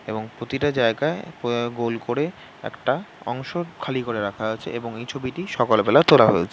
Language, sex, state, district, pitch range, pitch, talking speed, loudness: Bengali, male, West Bengal, North 24 Parganas, 115-140 Hz, 120 Hz, 165 wpm, -23 LUFS